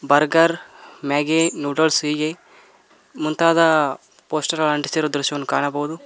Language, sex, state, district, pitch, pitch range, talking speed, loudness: Kannada, male, Karnataka, Koppal, 155 Hz, 145-160 Hz, 100 wpm, -19 LUFS